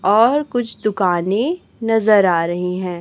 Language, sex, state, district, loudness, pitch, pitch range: Hindi, female, Chhattisgarh, Raipur, -17 LUFS, 210 Hz, 180-230 Hz